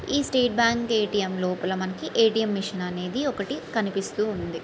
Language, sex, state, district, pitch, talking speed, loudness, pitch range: Telugu, female, Andhra Pradesh, Srikakulam, 210 Hz, 155 wpm, -25 LUFS, 185-235 Hz